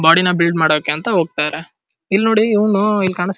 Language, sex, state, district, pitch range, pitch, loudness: Kannada, male, Karnataka, Dharwad, 160-205 Hz, 175 Hz, -15 LUFS